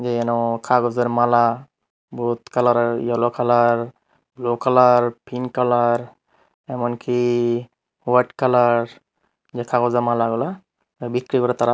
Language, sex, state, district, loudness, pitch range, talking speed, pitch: Bengali, male, Tripura, Unakoti, -19 LUFS, 120-125 Hz, 100 wpm, 120 Hz